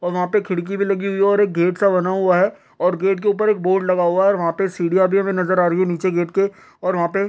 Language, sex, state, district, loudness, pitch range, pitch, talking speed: Hindi, male, Uttar Pradesh, Deoria, -18 LUFS, 180-195 Hz, 185 Hz, 335 wpm